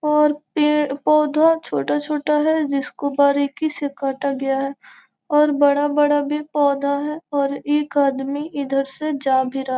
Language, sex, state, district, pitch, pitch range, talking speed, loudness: Hindi, female, Bihar, Gopalganj, 290 Hz, 280-300 Hz, 145 wpm, -20 LUFS